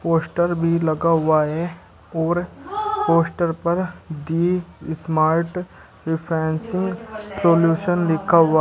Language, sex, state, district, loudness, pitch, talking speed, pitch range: Hindi, male, Uttar Pradesh, Shamli, -21 LUFS, 170 Hz, 95 wpm, 160-175 Hz